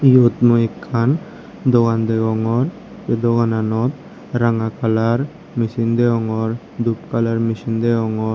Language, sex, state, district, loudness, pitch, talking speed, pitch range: Chakma, male, Tripura, West Tripura, -18 LUFS, 115 Hz, 110 wpm, 115-125 Hz